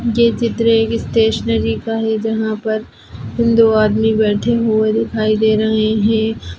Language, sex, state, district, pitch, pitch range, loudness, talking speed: Hindi, female, Chhattisgarh, Jashpur, 220 Hz, 215-225 Hz, -15 LUFS, 145 wpm